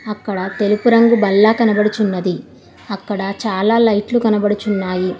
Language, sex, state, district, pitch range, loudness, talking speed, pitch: Telugu, female, Telangana, Hyderabad, 200-220 Hz, -15 LUFS, 105 wpm, 210 Hz